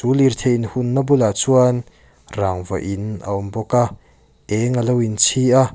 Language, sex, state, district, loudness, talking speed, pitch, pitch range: Mizo, male, Mizoram, Aizawl, -18 LUFS, 175 wpm, 110 Hz, 100-125 Hz